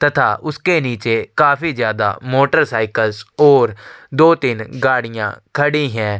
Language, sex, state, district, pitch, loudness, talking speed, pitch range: Hindi, male, Chhattisgarh, Sukma, 130 Hz, -16 LUFS, 125 wpm, 110-150 Hz